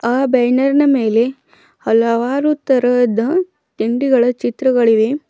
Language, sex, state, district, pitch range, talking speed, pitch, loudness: Kannada, female, Karnataka, Bidar, 235-275 Hz, 80 wpm, 250 Hz, -15 LUFS